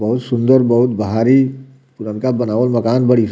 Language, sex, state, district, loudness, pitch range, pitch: Bhojpuri, male, Bihar, Muzaffarpur, -15 LUFS, 115-130 Hz, 120 Hz